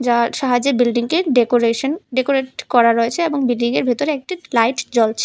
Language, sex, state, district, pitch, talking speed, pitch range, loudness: Bengali, female, Tripura, West Tripura, 245 Hz, 150 wpm, 235-275 Hz, -17 LUFS